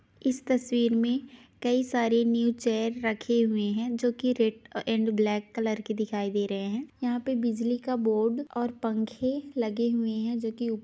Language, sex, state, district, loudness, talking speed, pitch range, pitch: Hindi, female, Chhattisgarh, Sarguja, -28 LUFS, 185 wpm, 220-245 Hz, 235 Hz